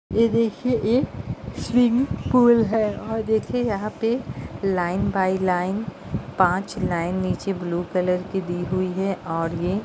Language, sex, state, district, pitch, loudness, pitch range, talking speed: Hindi, female, Uttar Pradesh, Budaun, 195 Hz, -23 LUFS, 180-225 Hz, 150 wpm